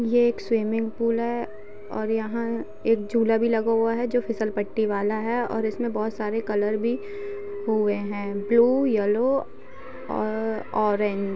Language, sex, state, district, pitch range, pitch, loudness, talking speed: Hindi, female, Bihar, East Champaran, 210-235 Hz, 225 Hz, -25 LUFS, 160 wpm